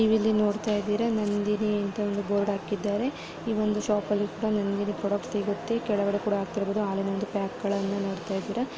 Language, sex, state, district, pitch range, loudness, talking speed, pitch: Kannada, female, Karnataka, Mysore, 200-210 Hz, -28 LUFS, 165 wpm, 205 Hz